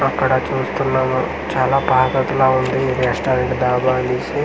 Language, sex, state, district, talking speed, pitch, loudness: Telugu, male, Andhra Pradesh, Manyam, 135 wpm, 130 Hz, -17 LUFS